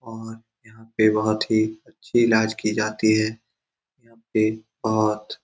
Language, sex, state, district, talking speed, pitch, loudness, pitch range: Hindi, male, Bihar, Saran, 155 wpm, 110 Hz, -22 LUFS, 110-115 Hz